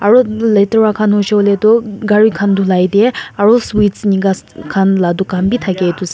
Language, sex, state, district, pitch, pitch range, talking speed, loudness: Nagamese, female, Nagaland, Kohima, 205 Hz, 195-215 Hz, 175 wpm, -12 LUFS